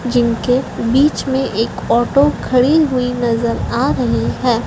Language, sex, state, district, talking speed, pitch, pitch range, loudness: Hindi, female, Madhya Pradesh, Dhar, 140 wpm, 250 Hz, 235-265 Hz, -15 LUFS